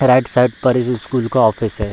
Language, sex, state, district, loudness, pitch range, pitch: Hindi, male, Bihar, Bhagalpur, -16 LUFS, 115-125 Hz, 125 Hz